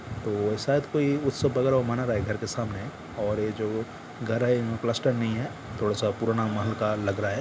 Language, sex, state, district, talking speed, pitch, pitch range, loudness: Hindi, male, Bihar, Jamui, 245 wpm, 115 Hz, 105-125 Hz, -27 LUFS